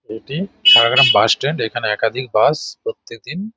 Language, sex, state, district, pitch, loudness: Bengali, male, West Bengal, Jhargram, 185 Hz, -14 LUFS